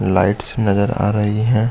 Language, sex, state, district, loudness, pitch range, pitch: Hindi, male, Chhattisgarh, Bilaspur, -17 LUFS, 100-110 Hz, 105 Hz